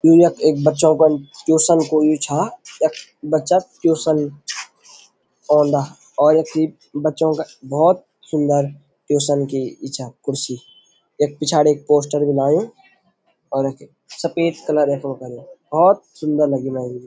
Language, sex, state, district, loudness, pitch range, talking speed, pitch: Garhwali, male, Uttarakhand, Uttarkashi, -18 LUFS, 140-160 Hz, 150 wpm, 150 Hz